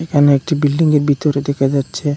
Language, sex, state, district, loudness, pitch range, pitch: Bengali, male, Assam, Hailakandi, -15 LUFS, 140-150 Hz, 145 Hz